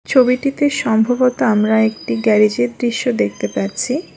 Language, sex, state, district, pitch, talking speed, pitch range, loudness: Bengali, female, West Bengal, Alipurduar, 225 Hz, 115 wpm, 210-250 Hz, -16 LUFS